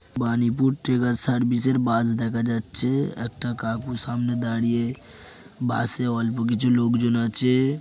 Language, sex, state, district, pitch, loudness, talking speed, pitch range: Bengali, male, West Bengal, Jhargram, 120 Hz, -23 LUFS, 130 wpm, 115-125 Hz